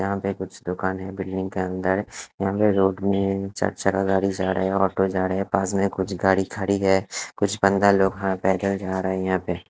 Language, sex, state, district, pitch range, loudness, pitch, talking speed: Hindi, male, Odisha, Khordha, 95-100 Hz, -23 LUFS, 95 Hz, 230 wpm